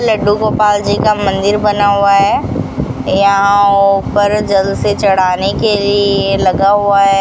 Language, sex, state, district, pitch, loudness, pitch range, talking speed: Hindi, female, Rajasthan, Bikaner, 200 Hz, -12 LUFS, 195-205 Hz, 150 wpm